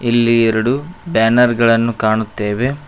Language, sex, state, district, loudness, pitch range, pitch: Kannada, male, Karnataka, Koppal, -15 LUFS, 115-125 Hz, 115 Hz